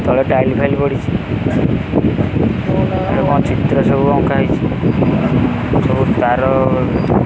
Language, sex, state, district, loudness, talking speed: Odia, male, Odisha, Khordha, -15 LUFS, 105 wpm